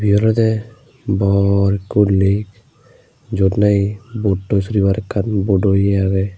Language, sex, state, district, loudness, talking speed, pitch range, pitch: Chakma, male, Tripura, Unakoti, -16 LUFS, 120 wpm, 100-110 Hz, 100 Hz